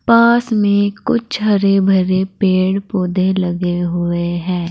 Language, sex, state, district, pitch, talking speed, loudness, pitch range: Hindi, female, Uttar Pradesh, Saharanpur, 190 Hz, 130 wpm, -15 LUFS, 180-205 Hz